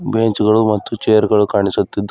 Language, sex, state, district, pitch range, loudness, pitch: Kannada, male, Karnataka, Bidar, 105-110 Hz, -15 LUFS, 105 Hz